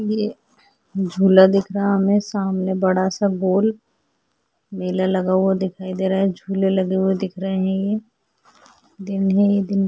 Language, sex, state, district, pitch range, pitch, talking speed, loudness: Hindi, female, Goa, North and South Goa, 190-200 Hz, 195 Hz, 165 wpm, -19 LUFS